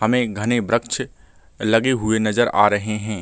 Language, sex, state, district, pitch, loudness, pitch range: Hindi, male, Chhattisgarh, Rajnandgaon, 110 Hz, -19 LUFS, 105-120 Hz